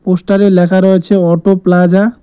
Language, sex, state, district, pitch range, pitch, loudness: Bengali, male, West Bengal, Cooch Behar, 180-195 Hz, 190 Hz, -10 LUFS